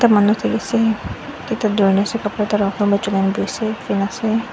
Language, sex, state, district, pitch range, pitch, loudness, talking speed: Nagamese, female, Nagaland, Dimapur, 200-225 Hz, 210 Hz, -18 LUFS, 120 wpm